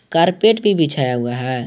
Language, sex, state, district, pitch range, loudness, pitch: Hindi, male, Jharkhand, Garhwa, 125-190 Hz, -16 LUFS, 155 Hz